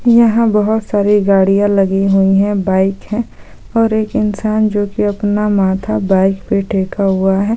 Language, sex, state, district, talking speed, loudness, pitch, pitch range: Hindi, female, Jharkhand, Sahebganj, 175 wpm, -14 LUFS, 205 Hz, 195-215 Hz